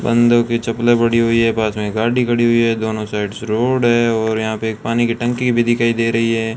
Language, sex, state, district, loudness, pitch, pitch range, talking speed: Hindi, male, Rajasthan, Bikaner, -16 LUFS, 115 Hz, 110-120 Hz, 265 wpm